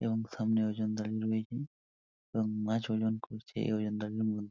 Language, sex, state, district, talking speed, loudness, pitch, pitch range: Bengali, male, West Bengal, Purulia, 175 wpm, -34 LUFS, 110 Hz, 105-110 Hz